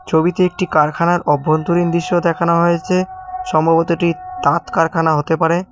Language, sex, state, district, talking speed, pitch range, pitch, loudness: Bengali, male, West Bengal, Cooch Behar, 135 wpm, 165-180 Hz, 170 Hz, -16 LUFS